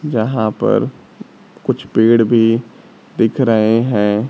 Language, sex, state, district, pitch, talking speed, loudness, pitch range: Hindi, female, Bihar, Kaimur, 115 Hz, 110 wpm, -15 LUFS, 110-120 Hz